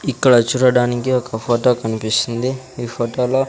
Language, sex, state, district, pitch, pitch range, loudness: Telugu, male, Andhra Pradesh, Sri Satya Sai, 125 Hz, 120-130 Hz, -17 LUFS